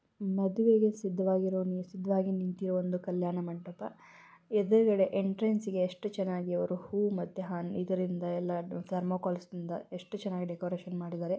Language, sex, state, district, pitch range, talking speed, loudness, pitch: Kannada, female, Karnataka, Belgaum, 180-195 Hz, 105 wpm, -33 LUFS, 185 Hz